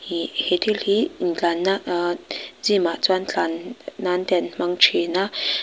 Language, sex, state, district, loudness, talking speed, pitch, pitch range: Mizo, female, Mizoram, Aizawl, -22 LUFS, 180 wpm, 180 Hz, 175-200 Hz